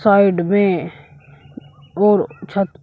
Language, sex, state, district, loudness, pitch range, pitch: Hindi, male, Uttar Pradesh, Shamli, -17 LUFS, 145-200 Hz, 175 Hz